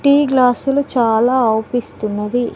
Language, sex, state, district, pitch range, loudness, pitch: Telugu, female, Telangana, Mahabubabad, 225-270 Hz, -16 LUFS, 245 Hz